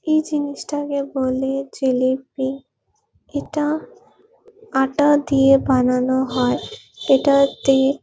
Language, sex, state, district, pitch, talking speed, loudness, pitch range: Bengali, female, West Bengal, Purulia, 275 Hz, 80 wpm, -19 LUFS, 265-290 Hz